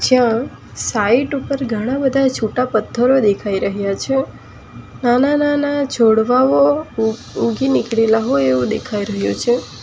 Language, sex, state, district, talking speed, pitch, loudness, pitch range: Gujarati, female, Gujarat, Valsad, 115 wpm, 240 Hz, -17 LUFS, 220-270 Hz